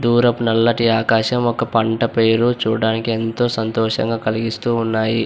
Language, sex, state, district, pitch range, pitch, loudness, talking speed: Telugu, male, Andhra Pradesh, Anantapur, 110-115 Hz, 115 Hz, -18 LUFS, 115 wpm